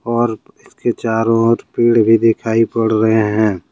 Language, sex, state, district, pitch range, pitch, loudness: Hindi, male, Jharkhand, Deoghar, 110-115 Hz, 115 Hz, -15 LUFS